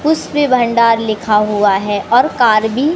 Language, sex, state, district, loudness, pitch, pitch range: Hindi, male, Madhya Pradesh, Katni, -13 LUFS, 230 Hz, 210-265 Hz